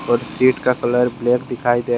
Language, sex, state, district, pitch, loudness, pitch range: Hindi, male, Jharkhand, Deoghar, 125 Hz, -18 LUFS, 120-125 Hz